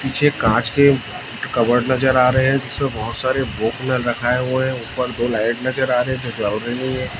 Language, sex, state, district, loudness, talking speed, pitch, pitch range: Hindi, male, Chhattisgarh, Raipur, -19 LUFS, 190 wpm, 125 Hz, 120-130 Hz